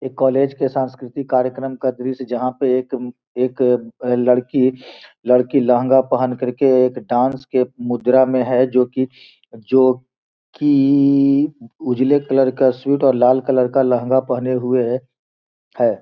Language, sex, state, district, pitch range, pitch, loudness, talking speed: Hindi, male, Bihar, Gopalganj, 125-135 Hz, 130 Hz, -17 LUFS, 145 wpm